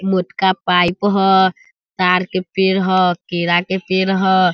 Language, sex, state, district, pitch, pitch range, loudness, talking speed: Hindi, male, Bihar, Sitamarhi, 185 Hz, 180-190 Hz, -16 LUFS, 145 wpm